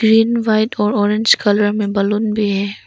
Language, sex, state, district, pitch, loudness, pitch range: Hindi, female, Arunachal Pradesh, Lower Dibang Valley, 210 Hz, -15 LUFS, 205-220 Hz